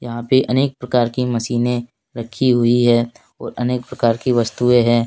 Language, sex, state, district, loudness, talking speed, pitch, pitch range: Hindi, male, Jharkhand, Deoghar, -17 LUFS, 180 wpm, 120 Hz, 120-125 Hz